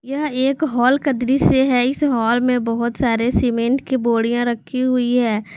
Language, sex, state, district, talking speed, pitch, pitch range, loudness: Hindi, female, Jharkhand, Garhwa, 185 wpm, 245 Hz, 235-265 Hz, -18 LUFS